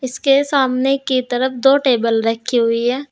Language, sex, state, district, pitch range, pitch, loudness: Hindi, female, Uttar Pradesh, Saharanpur, 240-275 Hz, 255 Hz, -16 LUFS